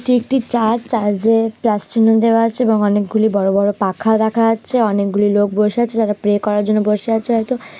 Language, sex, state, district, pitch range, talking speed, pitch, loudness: Bengali, female, West Bengal, Purulia, 205-230 Hz, 205 wpm, 220 Hz, -16 LUFS